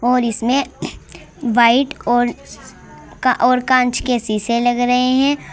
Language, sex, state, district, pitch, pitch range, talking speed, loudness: Hindi, female, Uttar Pradesh, Saharanpur, 245 Hz, 240-255 Hz, 120 wpm, -16 LUFS